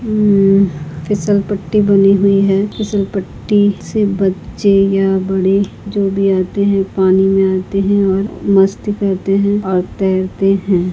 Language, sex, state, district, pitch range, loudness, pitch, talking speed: Hindi, female, Maharashtra, Pune, 190-200 Hz, -14 LUFS, 195 Hz, 145 wpm